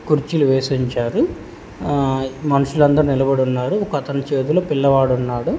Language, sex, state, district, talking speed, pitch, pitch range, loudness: Telugu, male, Telangana, Hyderabad, 120 wpm, 140 Hz, 130-145 Hz, -18 LUFS